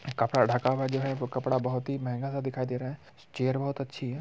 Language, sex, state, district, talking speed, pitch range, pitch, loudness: Hindi, male, Bihar, Muzaffarpur, 270 wpm, 125-135 Hz, 130 Hz, -30 LUFS